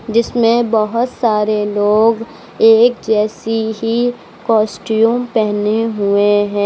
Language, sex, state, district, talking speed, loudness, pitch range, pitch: Hindi, female, Uttar Pradesh, Lucknow, 100 wpm, -14 LUFS, 210-230 Hz, 220 Hz